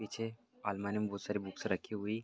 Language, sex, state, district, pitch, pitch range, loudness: Hindi, male, Uttar Pradesh, Etah, 105 Hz, 100-110 Hz, -39 LUFS